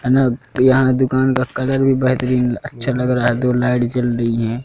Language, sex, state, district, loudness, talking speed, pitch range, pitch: Hindi, male, Madhya Pradesh, Katni, -17 LUFS, 220 wpm, 120-130 Hz, 125 Hz